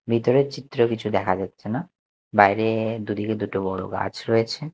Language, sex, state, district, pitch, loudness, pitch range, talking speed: Bengali, male, Chhattisgarh, Raipur, 110 Hz, -23 LUFS, 100-115 Hz, 150 wpm